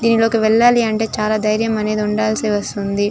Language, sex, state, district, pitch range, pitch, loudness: Telugu, female, Andhra Pradesh, Chittoor, 215-225 Hz, 215 Hz, -16 LUFS